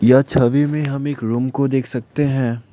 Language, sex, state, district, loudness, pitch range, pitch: Hindi, male, Assam, Kamrup Metropolitan, -18 LUFS, 120-140 Hz, 130 Hz